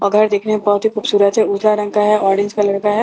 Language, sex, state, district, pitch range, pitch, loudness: Hindi, female, Bihar, Katihar, 205-215 Hz, 210 Hz, -15 LUFS